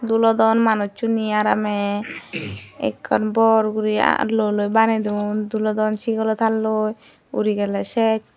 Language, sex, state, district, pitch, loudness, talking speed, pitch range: Chakma, female, Tripura, Unakoti, 215 Hz, -20 LUFS, 105 wpm, 210-225 Hz